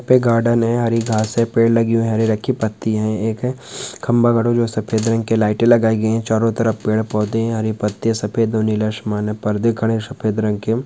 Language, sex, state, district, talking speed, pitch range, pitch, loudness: Hindi, male, West Bengal, Dakshin Dinajpur, 205 wpm, 110-115 Hz, 115 Hz, -18 LUFS